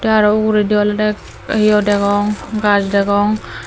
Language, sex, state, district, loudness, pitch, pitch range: Chakma, female, Tripura, Dhalai, -15 LUFS, 210 Hz, 205-215 Hz